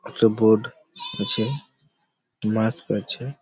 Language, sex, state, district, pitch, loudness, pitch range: Bengali, male, West Bengal, Malda, 115 Hz, -23 LUFS, 110-140 Hz